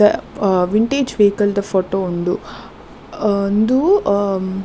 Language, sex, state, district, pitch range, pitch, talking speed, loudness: Tulu, female, Karnataka, Dakshina Kannada, 190-215 Hz, 200 Hz, 115 wpm, -17 LUFS